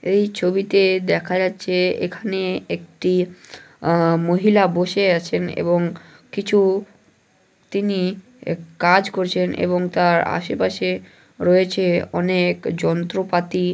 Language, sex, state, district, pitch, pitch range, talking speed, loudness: Bengali, male, West Bengal, North 24 Parganas, 180 Hz, 175-195 Hz, 95 wpm, -20 LUFS